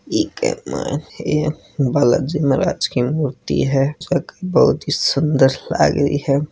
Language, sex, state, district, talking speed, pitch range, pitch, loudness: Hindi, male, Rajasthan, Nagaur, 140 wpm, 140-155 Hz, 145 Hz, -18 LUFS